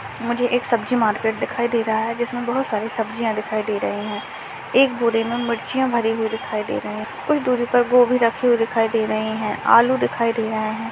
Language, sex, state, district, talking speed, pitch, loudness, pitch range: Hindi, female, Bihar, Saharsa, 225 wpm, 230 Hz, -20 LUFS, 220-245 Hz